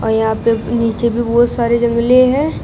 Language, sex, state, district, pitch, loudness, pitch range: Hindi, female, Uttar Pradesh, Shamli, 235 Hz, -14 LUFS, 230-240 Hz